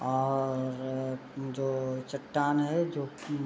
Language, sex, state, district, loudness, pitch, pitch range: Hindi, male, Bihar, Saharsa, -32 LUFS, 135 Hz, 130-145 Hz